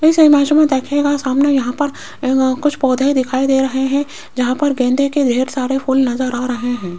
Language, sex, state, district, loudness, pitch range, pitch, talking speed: Hindi, female, Rajasthan, Jaipur, -15 LUFS, 255-285 Hz, 265 Hz, 205 wpm